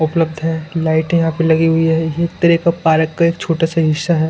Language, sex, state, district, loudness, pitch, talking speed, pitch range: Hindi, female, Maharashtra, Chandrapur, -15 LUFS, 165 Hz, 250 wpm, 160-170 Hz